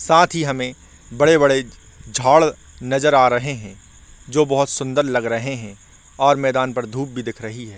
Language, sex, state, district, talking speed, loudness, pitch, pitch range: Hindi, male, Chhattisgarh, Korba, 175 wpm, -18 LUFS, 130 Hz, 115-140 Hz